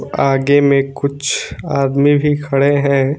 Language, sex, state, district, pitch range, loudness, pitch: Hindi, male, Jharkhand, Garhwa, 135-145 Hz, -15 LUFS, 140 Hz